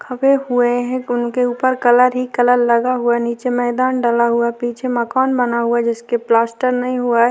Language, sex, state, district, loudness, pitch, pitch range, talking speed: Hindi, female, Chhattisgarh, Korba, -16 LUFS, 245 Hz, 235-250 Hz, 190 wpm